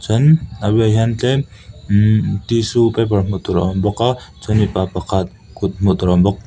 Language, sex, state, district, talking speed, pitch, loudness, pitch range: Mizo, male, Mizoram, Aizawl, 215 wpm, 105 Hz, -16 LUFS, 95-115 Hz